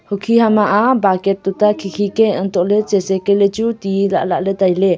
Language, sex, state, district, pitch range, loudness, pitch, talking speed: Wancho, female, Arunachal Pradesh, Longding, 195-210 Hz, -15 LUFS, 200 Hz, 145 wpm